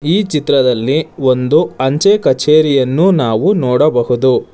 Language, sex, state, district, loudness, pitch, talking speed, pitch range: Kannada, male, Karnataka, Bangalore, -12 LUFS, 150 Hz, 90 wpm, 135-170 Hz